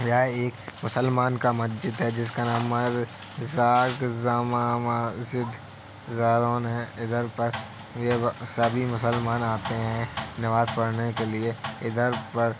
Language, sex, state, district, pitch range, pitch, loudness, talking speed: Hindi, male, Uttar Pradesh, Jalaun, 115-120 Hz, 120 Hz, -26 LUFS, 145 wpm